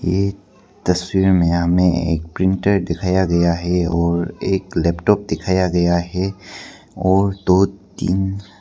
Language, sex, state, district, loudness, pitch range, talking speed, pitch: Hindi, male, Arunachal Pradesh, Papum Pare, -18 LUFS, 85-95 Hz, 125 wpm, 90 Hz